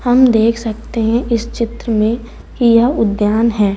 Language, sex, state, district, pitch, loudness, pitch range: Hindi, female, Chhattisgarh, Raipur, 230 Hz, -15 LUFS, 220-235 Hz